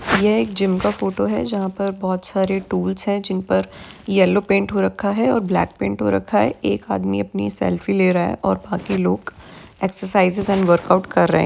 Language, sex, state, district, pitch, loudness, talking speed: Hindi, female, Maharashtra, Aurangabad, 190 Hz, -19 LUFS, 205 wpm